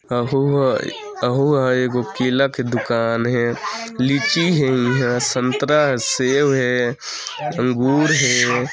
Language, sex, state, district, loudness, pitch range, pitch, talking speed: Chhattisgarhi, male, Chhattisgarh, Sarguja, -18 LUFS, 125-140 Hz, 130 Hz, 125 wpm